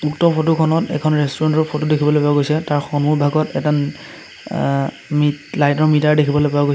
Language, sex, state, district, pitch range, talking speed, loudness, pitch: Assamese, male, Assam, Sonitpur, 145-155 Hz, 185 wpm, -17 LUFS, 150 Hz